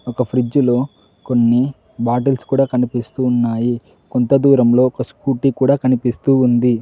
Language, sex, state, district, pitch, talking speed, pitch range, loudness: Telugu, male, Telangana, Mahabubabad, 125 Hz, 125 wpm, 120-135 Hz, -16 LUFS